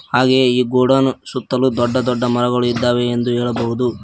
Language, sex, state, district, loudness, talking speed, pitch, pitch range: Kannada, male, Karnataka, Koppal, -16 LUFS, 150 wpm, 125 Hz, 120-130 Hz